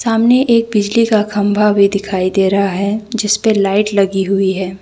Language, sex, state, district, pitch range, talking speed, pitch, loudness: Hindi, female, Jharkhand, Deoghar, 195-220 Hz, 185 wpm, 205 Hz, -14 LUFS